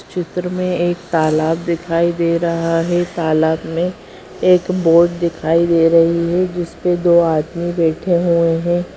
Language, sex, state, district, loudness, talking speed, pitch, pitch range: Hindi, female, Bihar, Bhagalpur, -16 LUFS, 155 wpm, 170 Hz, 165-175 Hz